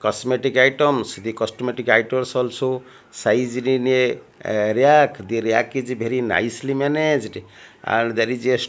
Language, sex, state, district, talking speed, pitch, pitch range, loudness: English, male, Odisha, Malkangiri, 140 wpm, 125 Hz, 115-130 Hz, -20 LUFS